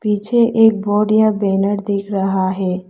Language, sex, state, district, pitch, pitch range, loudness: Hindi, female, Arunachal Pradesh, Lower Dibang Valley, 205 Hz, 195-215 Hz, -16 LUFS